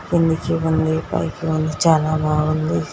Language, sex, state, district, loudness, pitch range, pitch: Telugu, female, Andhra Pradesh, Guntur, -19 LUFS, 155-160 Hz, 155 Hz